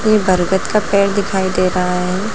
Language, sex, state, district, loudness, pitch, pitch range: Hindi, female, Bihar, Jamui, -16 LUFS, 190 Hz, 185-200 Hz